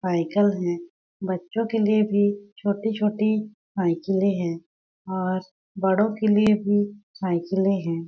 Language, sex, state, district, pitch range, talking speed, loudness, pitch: Hindi, female, Chhattisgarh, Balrampur, 185-210 Hz, 120 wpm, -24 LUFS, 195 Hz